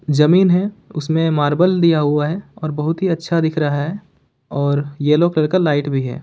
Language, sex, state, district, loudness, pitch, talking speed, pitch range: Hindi, male, Jharkhand, Ranchi, -17 LUFS, 155 Hz, 200 wpm, 145-175 Hz